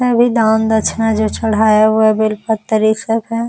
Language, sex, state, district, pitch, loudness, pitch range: Hindi, female, Bihar, Araria, 220 Hz, -14 LUFS, 215-225 Hz